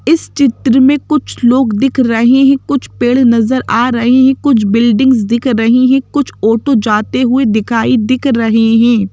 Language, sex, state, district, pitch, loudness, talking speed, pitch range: Hindi, female, Madhya Pradesh, Bhopal, 250 Hz, -11 LUFS, 175 wpm, 230-265 Hz